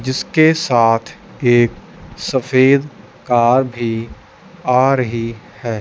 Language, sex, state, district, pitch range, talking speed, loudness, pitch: Hindi, male, Chandigarh, Chandigarh, 115-135 Hz, 95 wpm, -15 LUFS, 125 Hz